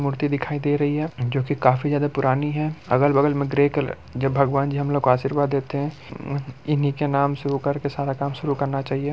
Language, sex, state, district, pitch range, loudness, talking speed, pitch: Hindi, male, Bihar, Muzaffarpur, 135-145 Hz, -22 LUFS, 230 wpm, 140 Hz